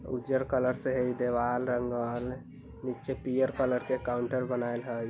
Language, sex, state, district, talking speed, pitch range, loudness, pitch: Bajjika, male, Bihar, Vaishali, 165 wpm, 120-130 Hz, -31 LUFS, 125 Hz